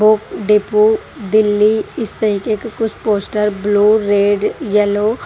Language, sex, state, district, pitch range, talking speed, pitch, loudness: Hindi, female, Haryana, Rohtak, 205-220 Hz, 135 wpm, 210 Hz, -15 LUFS